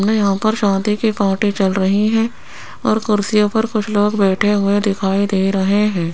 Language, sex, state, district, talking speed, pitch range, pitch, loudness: Hindi, female, Rajasthan, Jaipur, 195 wpm, 195-210 Hz, 205 Hz, -16 LUFS